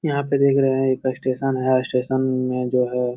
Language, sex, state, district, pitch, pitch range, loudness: Hindi, male, Bihar, Jamui, 130 Hz, 125-135 Hz, -21 LUFS